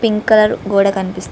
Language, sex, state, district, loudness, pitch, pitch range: Telugu, female, Andhra Pradesh, Visakhapatnam, -14 LUFS, 200 Hz, 195-215 Hz